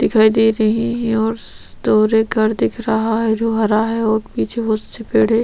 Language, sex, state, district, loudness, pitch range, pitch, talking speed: Hindi, female, Chhattisgarh, Sukma, -17 LUFS, 220-225 Hz, 220 Hz, 220 wpm